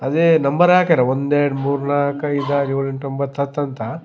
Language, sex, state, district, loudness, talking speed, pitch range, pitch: Kannada, male, Karnataka, Raichur, -18 LUFS, 205 wpm, 135-145 Hz, 140 Hz